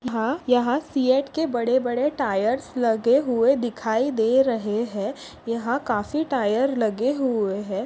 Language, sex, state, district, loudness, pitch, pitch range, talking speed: Hindi, female, Maharashtra, Pune, -23 LUFS, 245 Hz, 225-265 Hz, 145 wpm